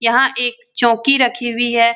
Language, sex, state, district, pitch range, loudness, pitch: Hindi, female, Bihar, Lakhisarai, 235-250 Hz, -15 LUFS, 240 Hz